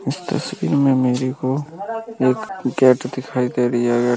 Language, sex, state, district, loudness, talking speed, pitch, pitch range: Hindi, male, Uttar Pradesh, Budaun, -20 LUFS, 160 wpm, 130 Hz, 125-150 Hz